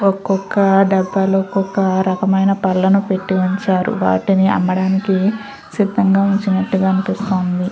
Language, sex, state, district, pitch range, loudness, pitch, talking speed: Telugu, female, Andhra Pradesh, Chittoor, 190-195 Hz, -16 LUFS, 190 Hz, 100 wpm